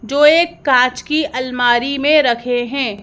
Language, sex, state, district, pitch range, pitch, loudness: Hindi, female, Madhya Pradesh, Bhopal, 245-295 Hz, 255 Hz, -15 LUFS